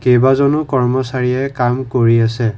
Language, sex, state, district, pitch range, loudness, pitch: Assamese, male, Assam, Kamrup Metropolitan, 120-130 Hz, -15 LUFS, 125 Hz